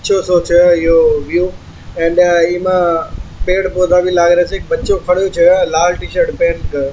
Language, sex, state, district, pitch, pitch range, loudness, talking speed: Marwari, male, Rajasthan, Churu, 180 Hz, 175-195 Hz, -13 LUFS, 175 wpm